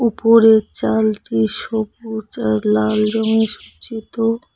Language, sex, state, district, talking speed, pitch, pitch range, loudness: Bengali, female, West Bengal, Cooch Behar, 90 wpm, 220 Hz, 135-225 Hz, -17 LUFS